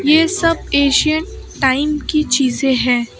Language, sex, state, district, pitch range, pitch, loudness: Hindi, male, Maharashtra, Mumbai Suburban, 265-310 Hz, 285 Hz, -15 LUFS